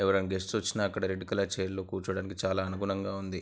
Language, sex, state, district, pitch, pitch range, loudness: Telugu, male, Andhra Pradesh, Anantapur, 95 Hz, 95-100 Hz, -32 LUFS